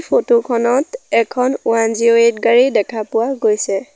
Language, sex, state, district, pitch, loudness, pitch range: Assamese, female, Assam, Sonitpur, 235 Hz, -15 LUFS, 225-250 Hz